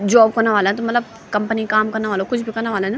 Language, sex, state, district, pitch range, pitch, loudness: Garhwali, female, Uttarakhand, Tehri Garhwal, 210-230 Hz, 220 Hz, -18 LUFS